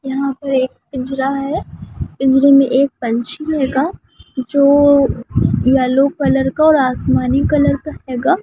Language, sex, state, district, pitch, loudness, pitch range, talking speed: Hindi, female, West Bengal, Kolkata, 270 Hz, -15 LUFS, 255-280 Hz, 135 wpm